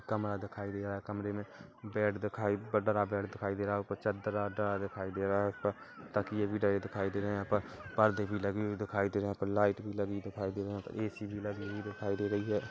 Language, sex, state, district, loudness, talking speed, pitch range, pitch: Hindi, male, Chhattisgarh, Kabirdham, -35 LUFS, 260 wpm, 100-105 Hz, 105 Hz